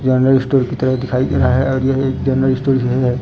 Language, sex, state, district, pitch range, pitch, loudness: Hindi, male, Chhattisgarh, Raipur, 130-135 Hz, 130 Hz, -16 LUFS